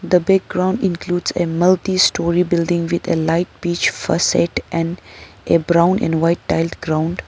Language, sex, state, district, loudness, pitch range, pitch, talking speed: English, female, Arunachal Pradesh, Papum Pare, -17 LUFS, 170-180 Hz, 175 Hz, 150 wpm